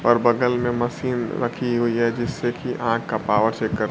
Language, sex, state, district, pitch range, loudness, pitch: Hindi, male, Bihar, Kaimur, 115-120 Hz, -22 LUFS, 120 Hz